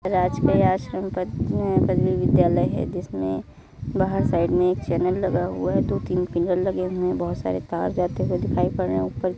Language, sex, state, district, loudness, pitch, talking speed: Hindi, female, Uttar Pradesh, Etah, -23 LUFS, 175 Hz, 185 wpm